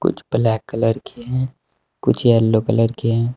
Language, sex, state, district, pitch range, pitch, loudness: Hindi, male, Uttar Pradesh, Saharanpur, 115-120 Hz, 115 Hz, -19 LUFS